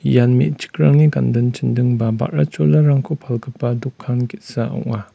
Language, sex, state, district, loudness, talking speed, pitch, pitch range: Garo, male, Meghalaya, West Garo Hills, -17 LUFS, 130 wpm, 120 Hz, 105-125 Hz